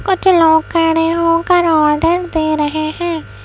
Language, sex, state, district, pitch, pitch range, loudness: Hindi, female, Madhya Pradesh, Bhopal, 330 Hz, 315-345 Hz, -13 LUFS